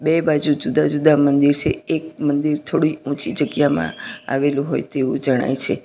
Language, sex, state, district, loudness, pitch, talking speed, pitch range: Gujarati, female, Gujarat, Valsad, -19 LUFS, 145 Hz, 165 wpm, 145-155 Hz